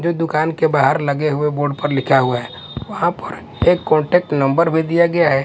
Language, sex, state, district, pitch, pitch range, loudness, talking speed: Hindi, male, Punjab, Kapurthala, 150 Hz, 140-165 Hz, -17 LUFS, 220 wpm